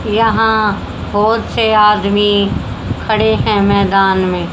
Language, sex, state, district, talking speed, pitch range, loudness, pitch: Hindi, female, Haryana, Jhajjar, 105 wpm, 200-220 Hz, -13 LUFS, 210 Hz